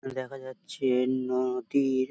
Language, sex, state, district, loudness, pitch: Bengali, male, West Bengal, Malda, -29 LUFS, 130 Hz